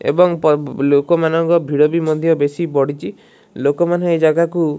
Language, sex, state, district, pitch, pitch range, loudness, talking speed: Odia, male, Odisha, Malkangiri, 160 Hz, 145-170 Hz, -16 LUFS, 125 wpm